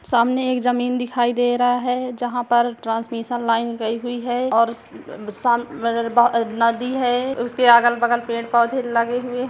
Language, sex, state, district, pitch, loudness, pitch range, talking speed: Hindi, female, Chhattisgarh, Raigarh, 240 Hz, -20 LUFS, 235-245 Hz, 160 wpm